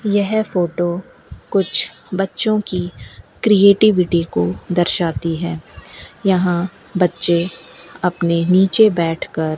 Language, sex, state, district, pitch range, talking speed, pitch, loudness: Hindi, female, Rajasthan, Bikaner, 170-195 Hz, 95 wpm, 175 Hz, -17 LUFS